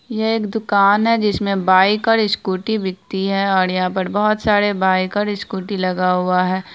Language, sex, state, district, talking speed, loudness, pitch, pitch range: Hindi, female, Bihar, Araria, 185 wpm, -17 LUFS, 200 Hz, 185-210 Hz